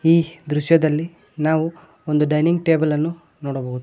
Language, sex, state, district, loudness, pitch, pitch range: Kannada, male, Karnataka, Koppal, -20 LUFS, 160 Hz, 150-165 Hz